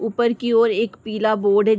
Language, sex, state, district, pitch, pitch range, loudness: Hindi, female, Uttar Pradesh, Ghazipur, 220 Hz, 215-230 Hz, -19 LUFS